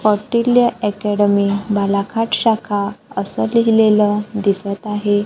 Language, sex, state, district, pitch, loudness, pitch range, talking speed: Marathi, female, Maharashtra, Gondia, 205 Hz, -17 LUFS, 200-225 Hz, 80 wpm